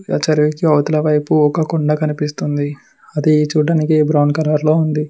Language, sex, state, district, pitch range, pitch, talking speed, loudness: Telugu, male, Telangana, Mahabubabad, 150-155 Hz, 150 Hz, 130 wpm, -15 LUFS